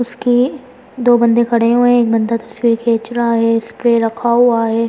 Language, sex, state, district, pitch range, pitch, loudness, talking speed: Hindi, female, Delhi, New Delhi, 230-245 Hz, 235 Hz, -14 LUFS, 195 wpm